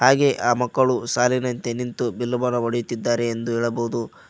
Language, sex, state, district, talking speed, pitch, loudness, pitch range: Kannada, male, Karnataka, Koppal, 140 wpm, 120 Hz, -22 LUFS, 120-125 Hz